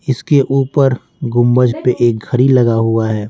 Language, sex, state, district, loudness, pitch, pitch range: Hindi, male, Bihar, Patna, -13 LUFS, 125 Hz, 115-135 Hz